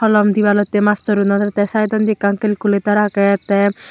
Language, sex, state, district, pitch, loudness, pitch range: Chakma, female, Tripura, Unakoti, 205 Hz, -15 LUFS, 200-210 Hz